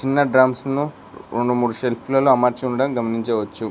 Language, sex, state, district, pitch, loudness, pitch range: Telugu, male, Telangana, Mahabubabad, 125 Hz, -20 LUFS, 120-135 Hz